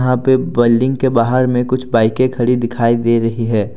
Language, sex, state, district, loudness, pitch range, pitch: Hindi, male, Jharkhand, Deoghar, -14 LUFS, 115-130 Hz, 120 Hz